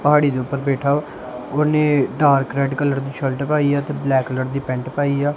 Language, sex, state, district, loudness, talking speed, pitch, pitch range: Punjabi, male, Punjab, Kapurthala, -19 LUFS, 225 wpm, 140 Hz, 135-145 Hz